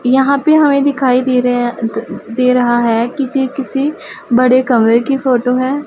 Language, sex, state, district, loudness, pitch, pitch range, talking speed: Hindi, female, Punjab, Pathankot, -13 LUFS, 255 Hz, 245-275 Hz, 185 wpm